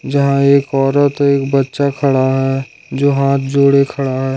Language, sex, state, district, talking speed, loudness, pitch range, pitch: Hindi, male, Jharkhand, Ranchi, 150 wpm, -14 LUFS, 135-140 Hz, 140 Hz